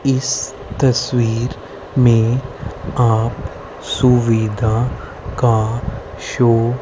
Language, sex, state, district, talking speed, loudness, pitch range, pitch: Hindi, female, Haryana, Rohtak, 70 wpm, -17 LUFS, 115-125 Hz, 120 Hz